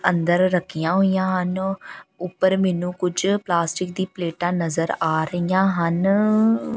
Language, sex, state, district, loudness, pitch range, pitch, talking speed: Punjabi, female, Punjab, Pathankot, -21 LUFS, 170-190 Hz, 180 Hz, 135 wpm